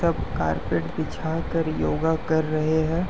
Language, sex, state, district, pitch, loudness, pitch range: Hindi, male, Uttar Pradesh, Jyotiba Phule Nagar, 160 Hz, -25 LUFS, 155-160 Hz